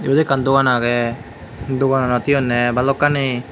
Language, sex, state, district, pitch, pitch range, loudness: Chakma, male, Tripura, West Tripura, 130 Hz, 120-135 Hz, -17 LUFS